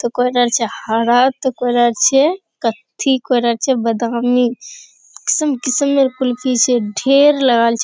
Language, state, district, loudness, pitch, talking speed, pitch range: Surjapuri, Bihar, Kishanganj, -15 LUFS, 250 Hz, 130 wpm, 240-275 Hz